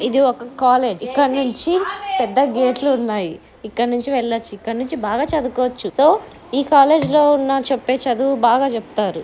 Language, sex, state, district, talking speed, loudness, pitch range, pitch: Telugu, female, Andhra Pradesh, Anantapur, 155 wpm, -18 LUFS, 240-280 Hz, 255 Hz